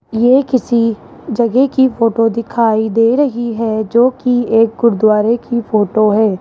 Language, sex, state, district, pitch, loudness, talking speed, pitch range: Hindi, male, Rajasthan, Jaipur, 230 Hz, -13 LUFS, 140 wpm, 220-245 Hz